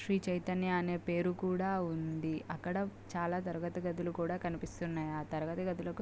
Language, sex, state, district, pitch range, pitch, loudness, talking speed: Telugu, female, Andhra Pradesh, Guntur, 165-185 Hz, 175 Hz, -37 LUFS, 150 wpm